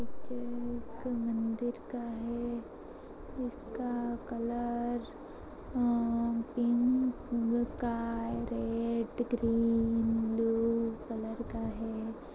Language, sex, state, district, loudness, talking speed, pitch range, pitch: Hindi, female, Bihar, Kishanganj, -33 LUFS, 80 wpm, 230-240 Hz, 235 Hz